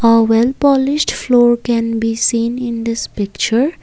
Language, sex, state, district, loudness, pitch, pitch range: English, female, Assam, Kamrup Metropolitan, -15 LUFS, 235 Hz, 230-250 Hz